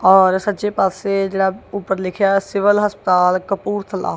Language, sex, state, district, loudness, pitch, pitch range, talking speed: Punjabi, female, Punjab, Kapurthala, -17 LUFS, 195 Hz, 190-200 Hz, 145 wpm